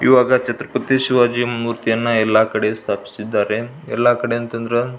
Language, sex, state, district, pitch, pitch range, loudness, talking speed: Kannada, male, Karnataka, Belgaum, 120 Hz, 110-120 Hz, -18 LUFS, 130 wpm